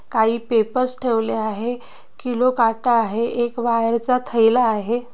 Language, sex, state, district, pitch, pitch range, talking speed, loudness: Marathi, female, Maharashtra, Nagpur, 235 Hz, 225-245 Hz, 140 wpm, -20 LUFS